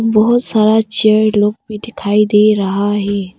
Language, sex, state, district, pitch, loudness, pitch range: Hindi, female, Arunachal Pradesh, Longding, 215 Hz, -13 LUFS, 205-215 Hz